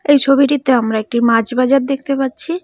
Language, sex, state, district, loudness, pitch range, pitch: Bengali, female, West Bengal, Cooch Behar, -14 LUFS, 240-280 Hz, 270 Hz